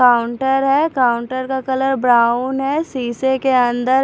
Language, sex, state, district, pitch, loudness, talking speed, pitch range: Hindi, female, Maharashtra, Washim, 260 Hz, -17 LUFS, 150 wpm, 245-270 Hz